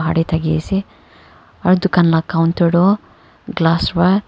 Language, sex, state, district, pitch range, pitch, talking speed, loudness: Nagamese, female, Nagaland, Kohima, 165-190 Hz, 170 Hz, 155 wpm, -16 LUFS